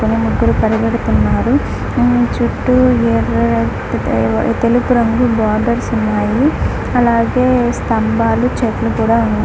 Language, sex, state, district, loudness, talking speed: Telugu, female, Andhra Pradesh, Guntur, -14 LUFS, 90 wpm